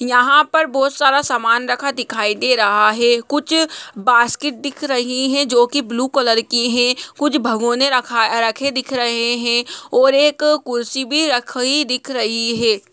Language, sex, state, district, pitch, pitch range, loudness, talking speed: Hindi, male, Bihar, Muzaffarpur, 250 Hz, 235-280 Hz, -16 LUFS, 165 wpm